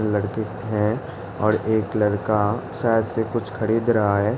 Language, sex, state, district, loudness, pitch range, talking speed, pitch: Hindi, male, Uttar Pradesh, Hamirpur, -22 LUFS, 105-115 Hz, 150 wpm, 110 Hz